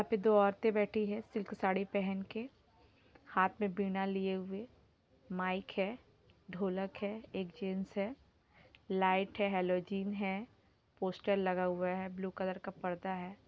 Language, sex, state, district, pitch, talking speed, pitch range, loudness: Hindi, female, Jharkhand, Sahebganj, 195 Hz, 155 wpm, 190-205 Hz, -36 LUFS